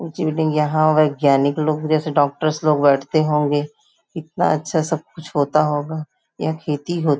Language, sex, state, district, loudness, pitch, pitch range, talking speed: Hindi, female, Chhattisgarh, Rajnandgaon, -19 LUFS, 155 Hz, 145-160 Hz, 140 wpm